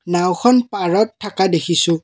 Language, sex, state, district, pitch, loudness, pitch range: Assamese, male, Assam, Kamrup Metropolitan, 180 Hz, -16 LUFS, 175-210 Hz